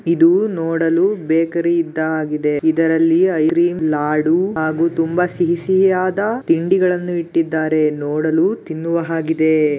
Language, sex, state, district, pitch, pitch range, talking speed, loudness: Kannada, male, Karnataka, Gulbarga, 165 Hz, 160-175 Hz, 100 wpm, -17 LUFS